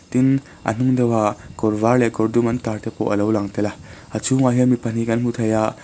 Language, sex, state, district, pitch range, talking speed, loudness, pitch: Mizo, male, Mizoram, Aizawl, 110-120 Hz, 285 wpm, -20 LUFS, 115 Hz